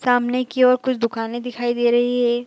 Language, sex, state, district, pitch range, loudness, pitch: Hindi, female, Bihar, Bhagalpur, 240-250 Hz, -19 LUFS, 245 Hz